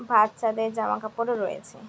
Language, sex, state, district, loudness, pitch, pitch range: Bengali, female, West Bengal, Jhargram, -26 LUFS, 225 Hz, 215-230 Hz